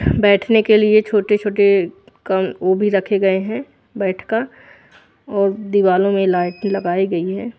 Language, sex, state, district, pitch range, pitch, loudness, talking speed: Hindi, female, Odisha, Khordha, 190-210 Hz, 200 Hz, -17 LUFS, 165 wpm